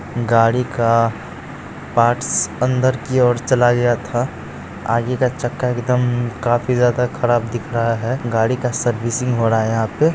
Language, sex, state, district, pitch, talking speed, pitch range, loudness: Hindi, female, Bihar, Araria, 120 Hz, 165 wpm, 115-125 Hz, -18 LUFS